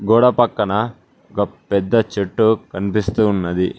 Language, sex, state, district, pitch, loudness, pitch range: Telugu, male, Telangana, Mahabubabad, 105 Hz, -18 LUFS, 100-115 Hz